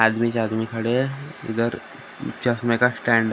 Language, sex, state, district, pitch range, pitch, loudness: Hindi, male, Maharashtra, Gondia, 115-120 Hz, 115 Hz, -23 LUFS